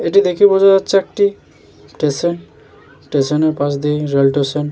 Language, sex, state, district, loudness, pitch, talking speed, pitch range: Bengali, male, West Bengal, Jalpaiguri, -15 LUFS, 155 Hz, 165 wpm, 145-195 Hz